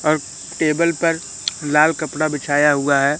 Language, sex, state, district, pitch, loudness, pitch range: Hindi, male, Madhya Pradesh, Katni, 155 Hz, -18 LUFS, 145-160 Hz